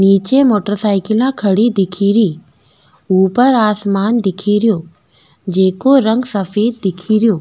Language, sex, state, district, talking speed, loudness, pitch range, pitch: Rajasthani, female, Rajasthan, Nagaur, 105 wpm, -14 LUFS, 190-225 Hz, 200 Hz